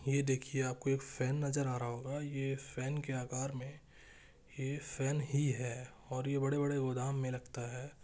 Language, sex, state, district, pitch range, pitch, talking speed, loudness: Hindi, male, Jharkhand, Jamtara, 130-140 Hz, 135 Hz, 200 wpm, -38 LUFS